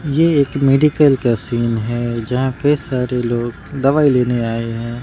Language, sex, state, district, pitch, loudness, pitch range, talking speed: Hindi, male, Bihar, Katihar, 125 Hz, -16 LUFS, 120-140 Hz, 165 wpm